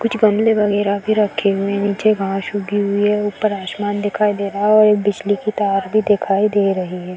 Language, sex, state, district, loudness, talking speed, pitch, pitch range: Hindi, female, Uttar Pradesh, Varanasi, -17 LUFS, 235 wpm, 205 Hz, 200-210 Hz